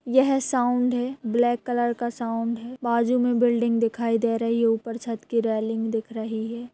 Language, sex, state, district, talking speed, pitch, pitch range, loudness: Hindi, female, Bihar, Saharsa, 195 wpm, 235 Hz, 230-245 Hz, -24 LUFS